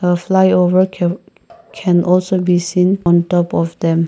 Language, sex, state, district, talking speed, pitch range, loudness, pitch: English, male, Nagaland, Kohima, 160 wpm, 175-185 Hz, -14 LUFS, 180 Hz